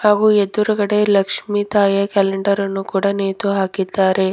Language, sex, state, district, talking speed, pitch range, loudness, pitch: Kannada, female, Karnataka, Bidar, 125 wpm, 195-205 Hz, -17 LUFS, 200 Hz